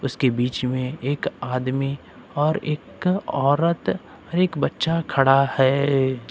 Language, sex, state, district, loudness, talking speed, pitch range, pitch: Hindi, male, Uttar Pradesh, Lucknow, -22 LUFS, 125 wpm, 130-155 Hz, 135 Hz